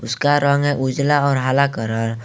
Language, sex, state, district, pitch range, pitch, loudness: Hindi, male, Jharkhand, Garhwa, 115-145 Hz, 140 Hz, -18 LUFS